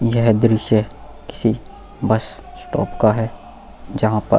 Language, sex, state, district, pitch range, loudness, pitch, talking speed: Hindi, male, Goa, North and South Goa, 110-115 Hz, -19 LUFS, 110 Hz, 135 wpm